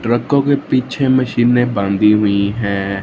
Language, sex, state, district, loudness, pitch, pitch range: Hindi, male, Punjab, Fazilka, -15 LUFS, 120 Hz, 100-130 Hz